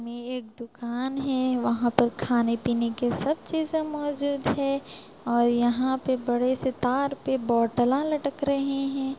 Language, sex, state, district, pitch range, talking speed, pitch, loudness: Hindi, female, Bihar, Sitamarhi, 240-275 Hz, 155 wpm, 255 Hz, -26 LUFS